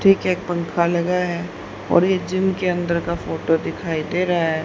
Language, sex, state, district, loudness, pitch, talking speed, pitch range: Hindi, female, Haryana, Rohtak, -21 LUFS, 175 Hz, 220 wpm, 170-185 Hz